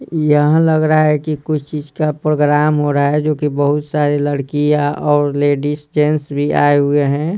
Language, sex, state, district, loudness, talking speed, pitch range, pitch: Hindi, male, Bihar, Patna, -15 LUFS, 185 wpm, 145-150 Hz, 150 Hz